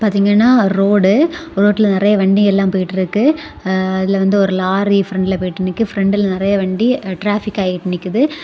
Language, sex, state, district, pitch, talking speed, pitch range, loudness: Tamil, female, Tamil Nadu, Kanyakumari, 200 Hz, 135 wpm, 190-210 Hz, -15 LUFS